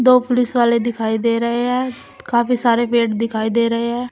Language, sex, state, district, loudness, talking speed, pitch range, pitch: Hindi, female, Uttar Pradesh, Saharanpur, -17 LUFS, 205 wpm, 230-245 Hz, 235 Hz